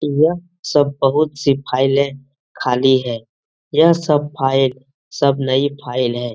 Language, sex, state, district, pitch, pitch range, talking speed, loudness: Hindi, male, Bihar, Jamui, 140 Hz, 130-145 Hz, 130 wpm, -17 LUFS